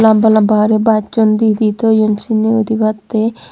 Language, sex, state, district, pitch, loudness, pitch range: Chakma, female, Tripura, Dhalai, 220 Hz, -13 LUFS, 215-220 Hz